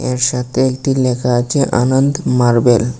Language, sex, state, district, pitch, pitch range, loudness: Bengali, male, Tripura, West Tripura, 125 Hz, 120-130 Hz, -14 LUFS